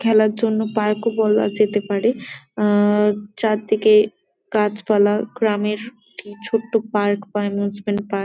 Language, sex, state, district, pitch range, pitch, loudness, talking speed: Bengali, female, West Bengal, Jalpaiguri, 205-220 Hz, 210 Hz, -19 LUFS, 125 wpm